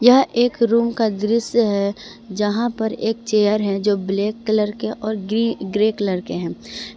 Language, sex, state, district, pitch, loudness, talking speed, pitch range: Hindi, female, Jharkhand, Palamu, 215 Hz, -20 LUFS, 180 wpm, 205-230 Hz